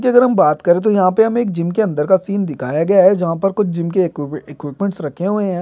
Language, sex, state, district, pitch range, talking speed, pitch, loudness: Hindi, male, Bihar, Saran, 165-200 Hz, 300 wpm, 185 Hz, -16 LUFS